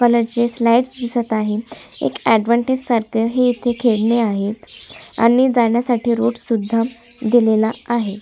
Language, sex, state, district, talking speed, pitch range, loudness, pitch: Marathi, female, Maharashtra, Sindhudurg, 125 wpm, 225-240 Hz, -17 LUFS, 235 Hz